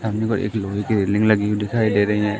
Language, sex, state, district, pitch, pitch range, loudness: Hindi, male, Madhya Pradesh, Umaria, 105 Hz, 105-110 Hz, -20 LUFS